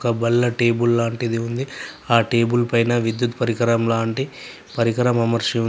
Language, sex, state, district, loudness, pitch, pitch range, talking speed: Telugu, male, Telangana, Adilabad, -20 LUFS, 115 Hz, 115-120 Hz, 145 wpm